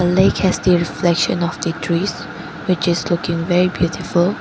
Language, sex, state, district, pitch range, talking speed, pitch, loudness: English, female, Arunachal Pradesh, Lower Dibang Valley, 170-180 Hz, 175 wpm, 175 Hz, -18 LUFS